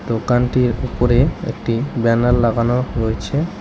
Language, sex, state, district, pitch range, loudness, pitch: Bengali, male, West Bengal, Cooch Behar, 115-125 Hz, -18 LUFS, 120 Hz